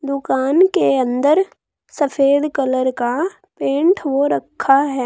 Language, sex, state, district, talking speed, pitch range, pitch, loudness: Hindi, female, Uttar Pradesh, Saharanpur, 120 wpm, 265-320 Hz, 280 Hz, -17 LUFS